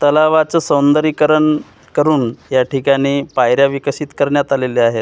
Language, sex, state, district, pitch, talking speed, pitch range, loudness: Marathi, male, Maharashtra, Gondia, 140 Hz, 120 wpm, 135-150 Hz, -14 LUFS